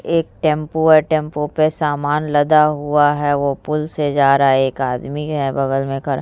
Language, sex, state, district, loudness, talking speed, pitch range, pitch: Hindi, female, Bihar, Vaishali, -17 LUFS, 200 wpm, 140-155 Hz, 145 Hz